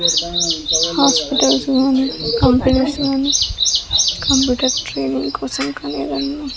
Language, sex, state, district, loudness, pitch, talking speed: Telugu, male, Andhra Pradesh, Guntur, -16 LUFS, 170 Hz, 75 wpm